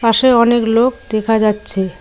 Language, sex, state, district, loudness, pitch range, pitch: Bengali, female, West Bengal, Cooch Behar, -14 LUFS, 215-235 Hz, 225 Hz